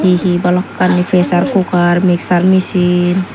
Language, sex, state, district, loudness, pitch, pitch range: Chakma, female, Tripura, Dhalai, -12 LUFS, 180 Hz, 175-185 Hz